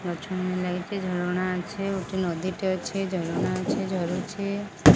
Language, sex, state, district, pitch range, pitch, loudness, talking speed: Odia, female, Odisha, Sambalpur, 180-195 Hz, 185 Hz, -28 LUFS, 145 wpm